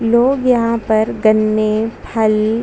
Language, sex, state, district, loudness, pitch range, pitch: Hindi, female, Chhattisgarh, Bastar, -15 LUFS, 215-230 Hz, 225 Hz